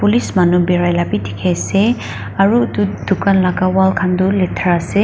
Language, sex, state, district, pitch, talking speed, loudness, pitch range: Nagamese, female, Nagaland, Dimapur, 185 Hz, 190 wpm, -15 LUFS, 175-195 Hz